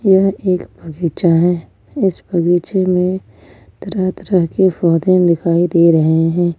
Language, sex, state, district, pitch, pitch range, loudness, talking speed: Hindi, female, Jharkhand, Ranchi, 175 Hz, 170-190 Hz, -15 LUFS, 135 wpm